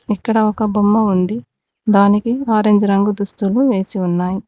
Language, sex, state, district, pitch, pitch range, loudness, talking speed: Telugu, female, Telangana, Mahabubabad, 210 Hz, 195-220 Hz, -15 LUFS, 135 wpm